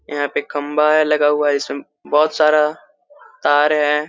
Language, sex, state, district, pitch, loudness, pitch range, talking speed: Hindi, male, Chhattisgarh, Korba, 150 Hz, -17 LUFS, 145-155 Hz, 175 wpm